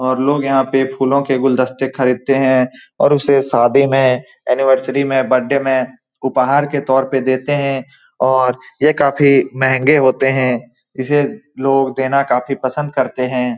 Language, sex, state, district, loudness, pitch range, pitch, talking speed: Hindi, male, Bihar, Saran, -15 LUFS, 130-140 Hz, 135 Hz, 150 wpm